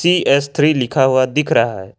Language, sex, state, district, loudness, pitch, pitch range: Hindi, male, Jharkhand, Ranchi, -15 LUFS, 135 Hz, 125-150 Hz